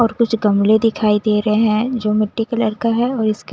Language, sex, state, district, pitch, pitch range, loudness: Hindi, female, Chandigarh, Chandigarh, 220 Hz, 215-235 Hz, -17 LUFS